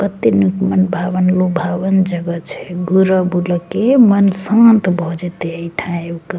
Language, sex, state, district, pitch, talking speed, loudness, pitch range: Maithili, female, Bihar, Begusarai, 185 Hz, 150 wpm, -15 LUFS, 175-195 Hz